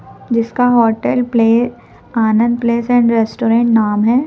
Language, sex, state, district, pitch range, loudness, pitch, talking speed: Hindi, female, Madhya Pradesh, Bhopal, 225-240 Hz, -14 LUFS, 235 Hz, 125 wpm